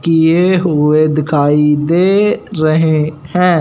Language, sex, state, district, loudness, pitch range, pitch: Hindi, male, Punjab, Fazilka, -12 LUFS, 150-175 Hz, 155 Hz